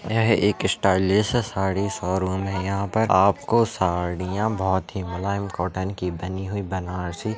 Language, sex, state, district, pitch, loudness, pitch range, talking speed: Hindi, male, Maharashtra, Solapur, 95 Hz, -23 LUFS, 95-100 Hz, 140 wpm